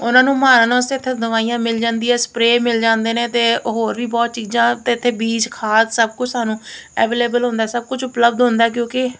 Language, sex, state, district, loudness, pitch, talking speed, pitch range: Punjabi, female, Punjab, Kapurthala, -16 LUFS, 235 Hz, 200 wpm, 230-245 Hz